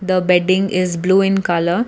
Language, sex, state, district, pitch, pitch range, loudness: English, female, Karnataka, Bangalore, 185 Hz, 180-195 Hz, -16 LUFS